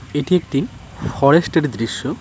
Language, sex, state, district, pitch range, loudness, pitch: Bengali, male, West Bengal, Cooch Behar, 130-160 Hz, -18 LUFS, 140 Hz